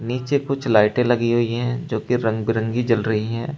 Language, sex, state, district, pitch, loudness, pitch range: Hindi, male, Uttar Pradesh, Shamli, 120 Hz, -20 LUFS, 115-125 Hz